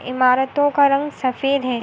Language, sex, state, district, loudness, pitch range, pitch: Hindi, female, Uttar Pradesh, Hamirpur, -18 LUFS, 255-285 Hz, 270 Hz